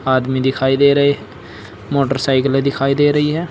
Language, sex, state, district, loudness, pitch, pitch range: Hindi, male, Uttar Pradesh, Saharanpur, -15 LUFS, 135 Hz, 130-140 Hz